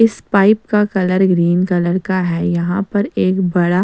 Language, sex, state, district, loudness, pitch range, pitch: Hindi, female, Bihar, West Champaran, -15 LUFS, 175-200 Hz, 185 Hz